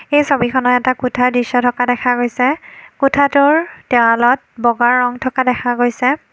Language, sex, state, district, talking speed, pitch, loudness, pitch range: Assamese, female, Assam, Kamrup Metropolitan, 140 wpm, 250 Hz, -14 LUFS, 245-265 Hz